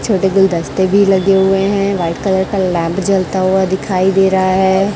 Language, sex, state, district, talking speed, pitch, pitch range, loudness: Hindi, female, Chhattisgarh, Raipur, 195 wpm, 190 Hz, 185-195 Hz, -13 LUFS